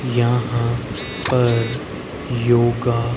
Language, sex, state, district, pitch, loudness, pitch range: Hindi, male, Haryana, Rohtak, 120 Hz, -18 LUFS, 115-120 Hz